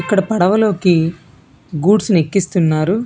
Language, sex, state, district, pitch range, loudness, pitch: Telugu, female, Telangana, Hyderabad, 165-205 Hz, -15 LUFS, 180 Hz